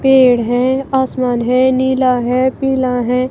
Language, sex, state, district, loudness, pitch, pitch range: Hindi, female, Himachal Pradesh, Shimla, -14 LUFS, 255 Hz, 250-260 Hz